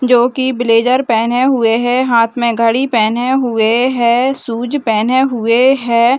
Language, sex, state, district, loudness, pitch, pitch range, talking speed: Hindi, female, Bihar, Madhepura, -13 LUFS, 240 Hz, 230-255 Hz, 145 wpm